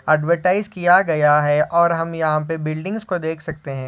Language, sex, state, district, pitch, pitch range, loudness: Hindi, male, Maharashtra, Solapur, 160 Hz, 155-175 Hz, -18 LUFS